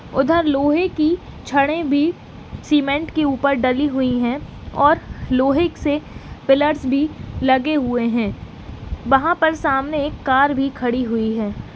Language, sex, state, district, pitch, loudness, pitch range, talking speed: Hindi, female, Uttar Pradesh, Varanasi, 280 Hz, -19 LUFS, 260-300 Hz, 145 wpm